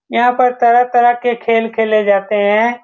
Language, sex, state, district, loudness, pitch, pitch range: Hindi, male, Bihar, Saran, -13 LUFS, 235 Hz, 220-240 Hz